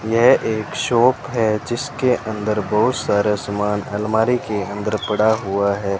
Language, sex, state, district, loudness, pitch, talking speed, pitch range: Hindi, male, Rajasthan, Bikaner, -19 LUFS, 105 Hz, 150 wpm, 105-110 Hz